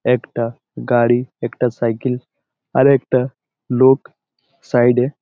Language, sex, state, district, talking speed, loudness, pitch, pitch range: Bengali, male, West Bengal, Malda, 115 wpm, -17 LUFS, 125 Hz, 120-130 Hz